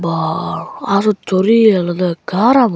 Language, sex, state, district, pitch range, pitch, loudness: Chakma, male, Tripura, Unakoti, 175-220 Hz, 190 Hz, -15 LUFS